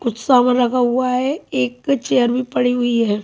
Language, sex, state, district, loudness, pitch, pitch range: Hindi, female, Haryana, Charkhi Dadri, -17 LUFS, 250 Hz, 245-255 Hz